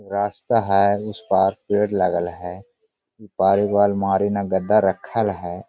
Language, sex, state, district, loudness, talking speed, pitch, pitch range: Hindi, male, Jharkhand, Sahebganj, -20 LUFS, 160 wpm, 100 Hz, 95-105 Hz